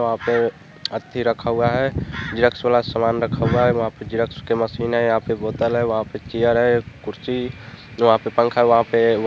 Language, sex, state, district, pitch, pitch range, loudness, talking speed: Hindi, male, Bihar, Vaishali, 115 Hz, 115-120 Hz, -20 LUFS, 215 wpm